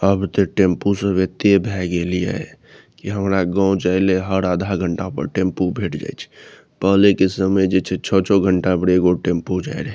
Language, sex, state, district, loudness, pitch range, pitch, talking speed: Maithili, male, Bihar, Saharsa, -18 LUFS, 90-95 Hz, 95 Hz, 195 wpm